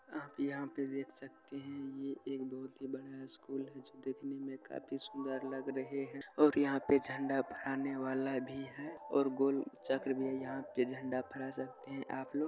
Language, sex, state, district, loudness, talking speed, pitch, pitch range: Maithili, male, Bihar, Supaul, -38 LUFS, 220 wpm, 135 Hz, 130-140 Hz